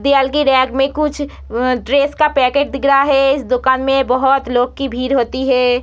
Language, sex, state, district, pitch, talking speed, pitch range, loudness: Hindi, female, Bihar, Muzaffarpur, 270 Hz, 205 wpm, 255-280 Hz, -15 LUFS